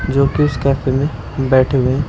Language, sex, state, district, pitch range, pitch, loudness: Hindi, male, Uttar Pradesh, Shamli, 130-140 Hz, 135 Hz, -16 LUFS